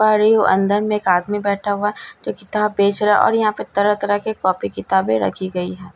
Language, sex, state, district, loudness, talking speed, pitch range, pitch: Hindi, female, Bihar, Katihar, -18 LUFS, 240 wpm, 185-210 Hz, 205 Hz